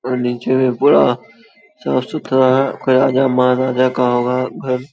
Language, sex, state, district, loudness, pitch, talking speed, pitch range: Hindi, male, Bihar, Samastipur, -15 LUFS, 130 Hz, 160 wpm, 125-130 Hz